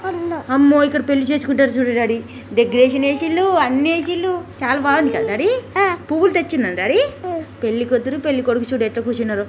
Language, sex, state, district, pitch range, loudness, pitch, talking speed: Telugu, female, Telangana, Karimnagar, 250-335 Hz, -17 LUFS, 280 Hz, 145 wpm